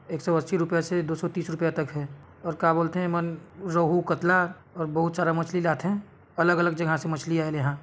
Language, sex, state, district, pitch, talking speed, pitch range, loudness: Chhattisgarhi, male, Chhattisgarh, Sarguja, 165 Hz, 235 wpm, 160-175 Hz, -26 LUFS